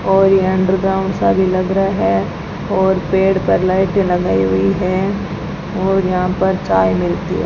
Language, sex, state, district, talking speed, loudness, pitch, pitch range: Hindi, female, Rajasthan, Bikaner, 170 wpm, -15 LUFS, 190 Hz, 175-190 Hz